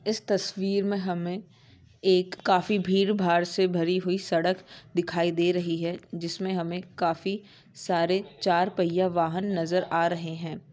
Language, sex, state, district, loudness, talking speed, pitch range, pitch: Hindi, female, Maharashtra, Aurangabad, -27 LUFS, 145 wpm, 170-190 Hz, 180 Hz